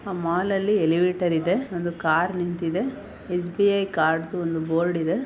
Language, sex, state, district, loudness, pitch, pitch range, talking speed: Kannada, female, Karnataka, Mysore, -24 LUFS, 175 Hz, 165-195 Hz, 150 wpm